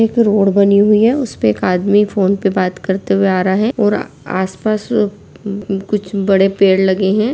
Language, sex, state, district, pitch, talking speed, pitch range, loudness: Hindi, female, Bihar, Gopalganj, 200 Hz, 195 wpm, 190-210 Hz, -14 LUFS